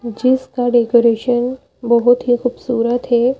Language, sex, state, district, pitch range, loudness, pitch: Hindi, female, Madhya Pradesh, Bhopal, 235-250 Hz, -15 LUFS, 245 Hz